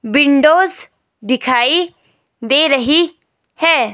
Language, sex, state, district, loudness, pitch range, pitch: Hindi, female, Himachal Pradesh, Shimla, -13 LUFS, 255-330 Hz, 285 Hz